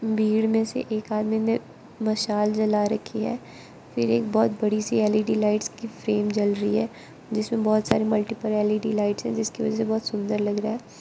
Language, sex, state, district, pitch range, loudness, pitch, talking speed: Hindi, female, Arunachal Pradesh, Lower Dibang Valley, 210-220 Hz, -25 LUFS, 215 Hz, 195 wpm